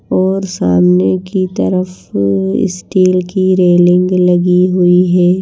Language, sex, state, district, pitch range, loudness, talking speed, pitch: Hindi, female, Madhya Pradesh, Bhopal, 175-185 Hz, -12 LUFS, 110 wpm, 180 Hz